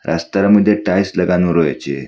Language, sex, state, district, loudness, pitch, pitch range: Bengali, male, Assam, Hailakandi, -15 LUFS, 95 Hz, 90-105 Hz